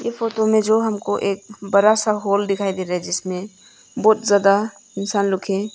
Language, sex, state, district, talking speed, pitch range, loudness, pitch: Hindi, female, Arunachal Pradesh, Longding, 190 wpm, 195-215 Hz, -19 LUFS, 200 Hz